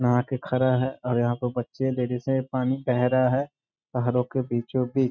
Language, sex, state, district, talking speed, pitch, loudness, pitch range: Hindi, male, Bihar, Sitamarhi, 200 wpm, 125 Hz, -25 LUFS, 125-130 Hz